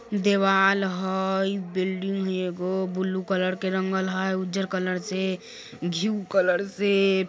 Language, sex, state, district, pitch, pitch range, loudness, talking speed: Bajjika, female, Bihar, Vaishali, 190 Hz, 185-195 Hz, -25 LUFS, 125 wpm